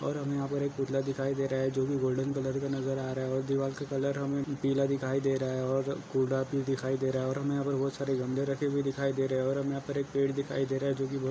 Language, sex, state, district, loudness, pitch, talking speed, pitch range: Hindi, male, Goa, North and South Goa, -31 LUFS, 135 Hz, 325 wpm, 135-140 Hz